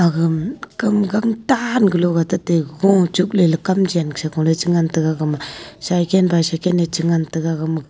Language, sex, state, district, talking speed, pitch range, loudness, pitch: Wancho, female, Arunachal Pradesh, Longding, 160 wpm, 160-190 Hz, -18 LUFS, 170 Hz